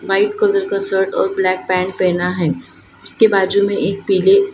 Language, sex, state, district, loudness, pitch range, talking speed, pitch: Hindi, female, Maharashtra, Gondia, -16 LUFS, 185-220 Hz, 185 wpm, 195 Hz